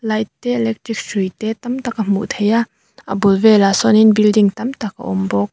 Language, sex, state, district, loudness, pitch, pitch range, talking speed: Mizo, female, Mizoram, Aizawl, -16 LUFS, 215 Hz, 200-230 Hz, 215 wpm